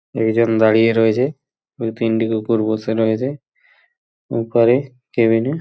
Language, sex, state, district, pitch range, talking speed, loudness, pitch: Bengali, male, West Bengal, Purulia, 110-125 Hz, 120 wpm, -18 LUFS, 115 Hz